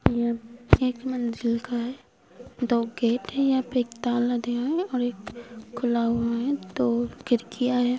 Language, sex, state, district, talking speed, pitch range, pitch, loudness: Hindi, female, Uttar Pradesh, Hamirpur, 165 wpm, 235-250 Hz, 240 Hz, -26 LUFS